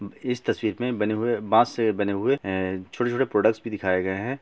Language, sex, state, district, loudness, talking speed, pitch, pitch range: Hindi, male, Bihar, Gopalganj, -25 LUFS, 205 wpm, 110 Hz, 100-120 Hz